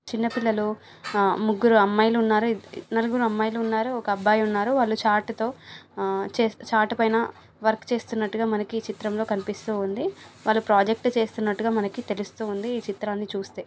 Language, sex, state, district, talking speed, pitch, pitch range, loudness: Telugu, female, Andhra Pradesh, Anantapur, 125 wpm, 220 Hz, 210-230 Hz, -25 LUFS